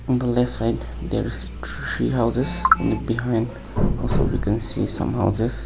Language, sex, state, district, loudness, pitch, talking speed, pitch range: English, male, Nagaland, Kohima, -23 LUFS, 115 Hz, 150 wpm, 110-120 Hz